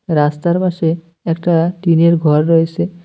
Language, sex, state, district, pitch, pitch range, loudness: Bengali, male, West Bengal, Cooch Behar, 165 Hz, 165-175 Hz, -14 LUFS